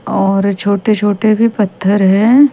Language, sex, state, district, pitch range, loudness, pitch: Hindi, female, Haryana, Rohtak, 200-220 Hz, -12 LUFS, 205 Hz